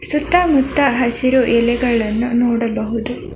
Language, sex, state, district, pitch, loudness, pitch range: Kannada, female, Karnataka, Bangalore, 245 Hz, -16 LUFS, 235-265 Hz